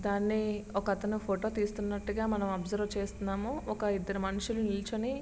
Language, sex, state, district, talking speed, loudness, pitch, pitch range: Telugu, male, Andhra Pradesh, Srikakulam, 150 wpm, -34 LUFS, 205 Hz, 200-215 Hz